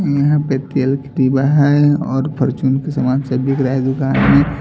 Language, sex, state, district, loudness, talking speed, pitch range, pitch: Hindi, male, Chhattisgarh, Raipur, -15 LUFS, 210 wpm, 130-145 Hz, 135 Hz